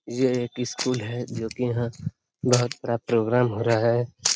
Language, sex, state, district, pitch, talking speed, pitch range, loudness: Hindi, male, Bihar, Jamui, 120 Hz, 180 wpm, 115-125 Hz, -25 LUFS